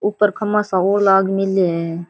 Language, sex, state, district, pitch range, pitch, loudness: Rajasthani, female, Rajasthan, Churu, 185-205 Hz, 195 Hz, -17 LUFS